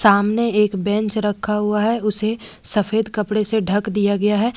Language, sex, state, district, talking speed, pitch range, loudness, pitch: Hindi, female, Jharkhand, Ranchi, 185 wpm, 205-220 Hz, -19 LUFS, 210 Hz